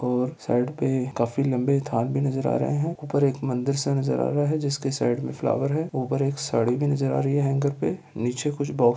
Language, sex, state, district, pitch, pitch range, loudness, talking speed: Hindi, male, Bihar, Gaya, 135 Hz, 125-140 Hz, -25 LUFS, 255 wpm